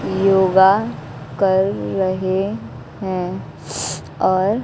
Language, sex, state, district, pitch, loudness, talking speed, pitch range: Hindi, female, Bihar, West Champaran, 185 Hz, -18 LUFS, 65 wpm, 145-190 Hz